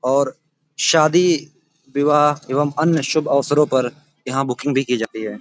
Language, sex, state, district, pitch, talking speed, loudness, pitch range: Hindi, male, Uttar Pradesh, Gorakhpur, 145 Hz, 155 wpm, -18 LUFS, 135-155 Hz